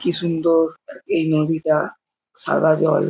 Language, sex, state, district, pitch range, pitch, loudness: Bengali, male, West Bengal, Jhargram, 155-165 Hz, 160 Hz, -19 LUFS